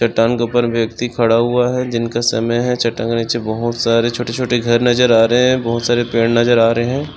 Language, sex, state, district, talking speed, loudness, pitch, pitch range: Hindi, male, Maharashtra, Sindhudurg, 210 wpm, -15 LUFS, 120 Hz, 115-120 Hz